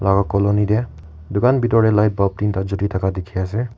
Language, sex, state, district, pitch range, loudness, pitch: Nagamese, male, Nagaland, Kohima, 95-110 Hz, -18 LUFS, 100 Hz